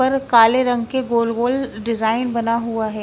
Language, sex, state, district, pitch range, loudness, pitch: Hindi, female, Himachal Pradesh, Shimla, 230-255 Hz, -18 LUFS, 235 Hz